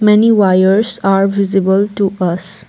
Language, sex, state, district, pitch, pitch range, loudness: English, female, Assam, Kamrup Metropolitan, 195 Hz, 190-205 Hz, -12 LUFS